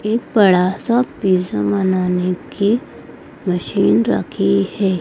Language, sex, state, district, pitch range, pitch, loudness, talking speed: Hindi, female, Madhya Pradesh, Dhar, 180-215 Hz, 185 Hz, -17 LUFS, 105 wpm